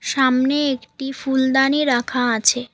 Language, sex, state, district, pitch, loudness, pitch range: Bengali, female, West Bengal, Alipurduar, 265 Hz, -18 LUFS, 250-270 Hz